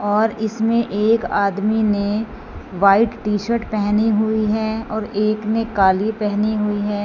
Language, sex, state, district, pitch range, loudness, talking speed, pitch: Hindi, female, Punjab, Fazilka, 205-220 Hz, -19 LUFS, 155 wpm, 215 Hz